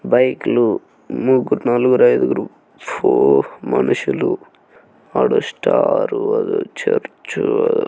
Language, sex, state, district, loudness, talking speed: Telugu, male, Andhra Pradesh, Krishna, -17 LUFS, 70 wpm